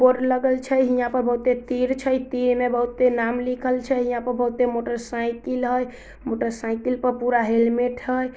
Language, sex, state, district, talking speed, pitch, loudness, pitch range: Maithili, female, Bihar, Samastipur, 180 wpm, 250 Hz, -23 LUFS, 240-255 Hz